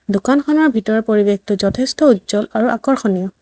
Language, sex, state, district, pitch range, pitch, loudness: Assamese, female, Assam, Sonitpur, 205-265 Hz, 220 Hz, -15 LUFS